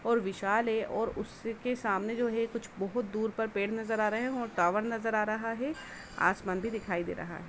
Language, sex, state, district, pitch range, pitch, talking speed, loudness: Hindi, female, Uttar Pradesh, Budaun, 200-230 Hz, 220 Hz, 230 wpm, -32 LUFS